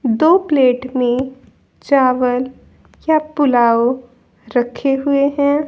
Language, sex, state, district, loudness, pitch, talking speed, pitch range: Hindi, female, Haryana, Jhajjar, -15 LUFS, 260 Hz, 95 wpm, 245-285 Hz